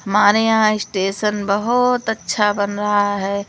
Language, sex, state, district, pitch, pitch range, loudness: Hindi, female, Madhya Pradesh, Umaria, 205 Hz, 200-220 Hz, -17 LUFS